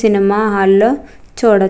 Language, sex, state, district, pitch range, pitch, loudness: Telugu, female, Andhra Pradesh, Chittoor, 200-220 Hz, 210 Hz, -13 LUFS